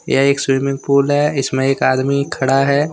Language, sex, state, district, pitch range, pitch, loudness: Hindi, male, Jharkhand, Deoghar, 135-140 Hz, 140 Hz, -16 LUFS